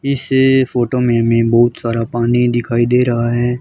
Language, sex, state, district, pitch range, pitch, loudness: Hindi, male, Haryana, Charkhi Dadri, 120-125 Hz, 120 Hz, -14 LUFS